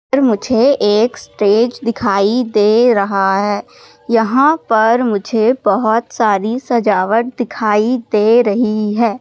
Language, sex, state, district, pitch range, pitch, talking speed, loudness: Hindi, female, Madhya Pradesh, Katni, 210-245 Hz, 225 Hz, 115 wpm, -14 LUFS